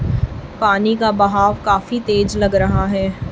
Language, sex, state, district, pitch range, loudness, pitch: Hindi, female, Chhattisgarh, Raipur, 190-210 Hz, -17 LUFS, 200 Hz